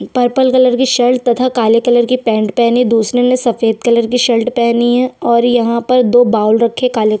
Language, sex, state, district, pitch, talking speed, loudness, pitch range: Hindi, female, Chhattisgarh, Sukma, 240 Hz, 210 wpm, -12 LUFS, 230-250 Hz